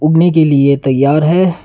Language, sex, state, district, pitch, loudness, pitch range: Hindi, male, Karnataka, Bangalore, 155 Hz, -11 LUFS, 140-165 Hz